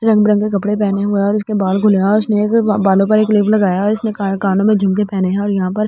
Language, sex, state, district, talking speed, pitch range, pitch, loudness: Hindi, female, Delhi, New Delhi, 305 wpm, 195-210 Hz, 205 Hz, -14 LUFS